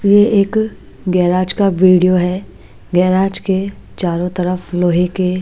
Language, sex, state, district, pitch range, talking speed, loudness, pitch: Hindi, female, Maharashtra, Washim, 180-195 Hz, 145 wpm, -15 LUFS, 185 Hz